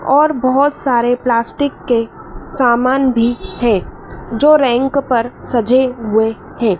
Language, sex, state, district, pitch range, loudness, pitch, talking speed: Hindi, female, Madhya Pradesh, Dhar, 230-270 Hz, -14 LUFS, 245 Hz, 125 wpm